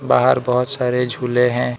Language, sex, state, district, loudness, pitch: Hindi, male, Arunachal Pradesh, Lower Dibang Valley, -17 LUFS, 125 Hz